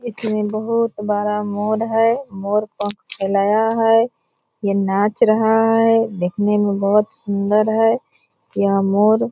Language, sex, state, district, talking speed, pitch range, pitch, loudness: Hindi, female, Bihar, Purnia, 135 wpm, 205-225 Hz, 210 Hz, -18 LUFS